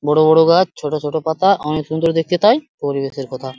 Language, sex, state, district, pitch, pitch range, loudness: Bengali, male, West Bengal, Purulia, 155 Hz, 145-175 Hz, -16 LUFS